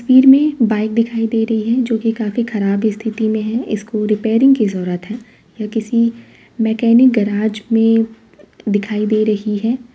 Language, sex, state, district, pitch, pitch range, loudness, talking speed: Hindi, female, Uttar Pradesh, Varanasi, 225 Hz, 215-230 Hz, -16 LUFS, 170 wpm